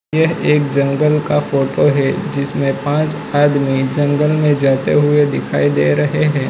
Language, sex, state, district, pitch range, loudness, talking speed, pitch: Hindi, male, Gujarat, Valsad, 135-150 Hz, -15 LUFS, 155 wpm, 145 Hz